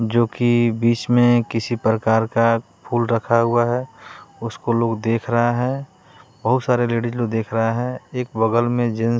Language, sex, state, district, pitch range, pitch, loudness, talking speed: Hindi, male, Bihar, West Champaran, 115-120 Hz, 120 Hz, -20 LUFS, 175 wpm